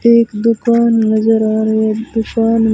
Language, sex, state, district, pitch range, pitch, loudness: Hindi, female, Rajasthan, Bikaner, 220-230 Hz, 225 Hz, -13 LUFS